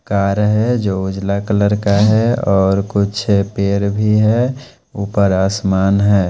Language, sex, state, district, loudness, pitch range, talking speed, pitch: Hindi, male, Punjab, Pathankot, -15 LUFS, 100-105 Hz, 140 wpm, 100 Hz